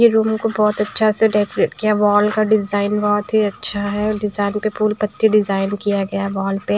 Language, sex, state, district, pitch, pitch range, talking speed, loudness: Hindi, female, Punjab, Kapurthala, 210 Hz, 205-215 Hz, 195 wpm, -17 LUFS